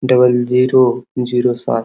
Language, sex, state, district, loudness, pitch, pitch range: Hindi, male, Uttar Pradesh, Hamirpur, -14 LUFS, 125 Hz, 120-125 Hz